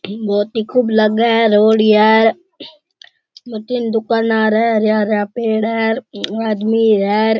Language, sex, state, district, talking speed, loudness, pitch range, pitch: Rajasthani, male, Rajasthan, Churu, 155 wpm, -14 LUFS, 215-230 Hz, 220 Hz